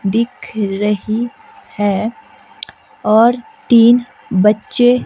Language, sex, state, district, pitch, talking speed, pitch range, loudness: Hindi, female, Himachal Pradesh, Shimla, 235 Hz, 70 wpm, 210-295 Hz, -15 LUFS